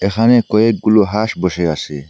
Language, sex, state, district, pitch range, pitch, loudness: Bengali, male, Assam, Hailakandi, 90-110 Hz, 105 Hz, -14 LUFS